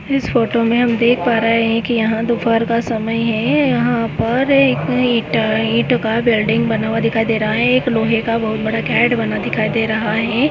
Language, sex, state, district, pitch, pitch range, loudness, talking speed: Hindi, female, Goa, North and South Goa, 230 Hz, 225-240 Hz, -16 LUFS, 205 wpm